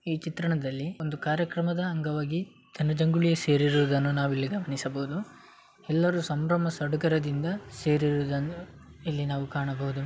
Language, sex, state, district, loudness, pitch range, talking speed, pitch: Kannada, male, Karnataka, Dakshina Kannada, -28 LUFS, 145-170 Hz, 105 wpm, 155 Hz